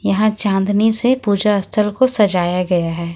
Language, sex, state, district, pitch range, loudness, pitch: Hindi, female, Jharkhand, Ranchi, 180-215 Hz, -16 LUFS, 205 Hz